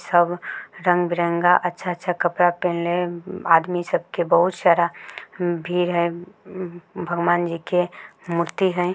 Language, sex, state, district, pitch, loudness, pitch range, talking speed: Maithili, female, Bihar, Samastipur, 175 Hz, -21 LUFS, 170-180 Hz, 120 wpm